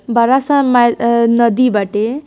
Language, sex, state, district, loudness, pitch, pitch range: Hindi, female, Bihar, East Champaran, -13 LUFS, 235 Hz, 230-255 Hz